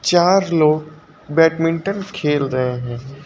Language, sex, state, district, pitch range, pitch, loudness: Hindi, male, Uttar Pradesh, Lucknow, 140-175 Hz, 155 Hz, -18 LUFS